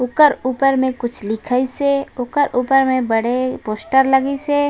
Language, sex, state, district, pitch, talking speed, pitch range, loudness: Chhattisgarhi, female, Chhattisgarh, Raigarh, 260 Hz, 165 wpm, 250-275 Hz, -17 LUFS